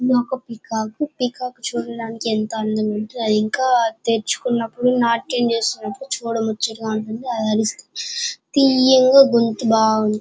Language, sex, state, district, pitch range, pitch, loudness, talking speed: Telugu, female, Andhra Pradesh, Chittoor, 220-250 Hz, 230 Hz, -19 LUFS, 135 wpm